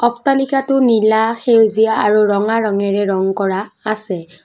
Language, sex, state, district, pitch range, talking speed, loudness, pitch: Assamese, female, Assam, Kamrup Metropolitan, 200-230 Hz, 120 wpm, -15 LUFS, 215 Hz